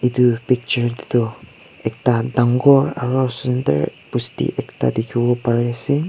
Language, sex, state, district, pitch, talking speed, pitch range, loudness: Nagamese, male, Nagaland, Kohima, 125 Hz, 120 wpm, 120-130 Hz, -19 LUFS